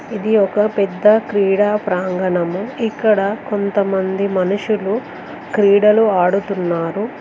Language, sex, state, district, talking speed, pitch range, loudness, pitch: Telugu, female, Telangana, Mahabubabad, 85 wpm, 190-215 Hz, -16 LUFS, 205 Hz